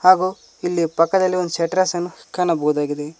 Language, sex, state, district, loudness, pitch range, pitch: Kannada, male, Karnataka, Koppal, -20 LUFS, 165-185 Hz, 175 Hz